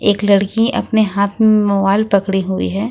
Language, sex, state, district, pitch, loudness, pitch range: Hindi, female, Jharkhand, Ranchi, 200 Hz, -15 LUFS, 195-215 Hz